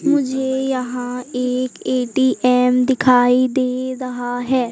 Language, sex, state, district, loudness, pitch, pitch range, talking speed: Hindi, female, Madhya Pradesh, Katni, -18 LUFS, 255 Hz, 250-260 Hz, 100 wpm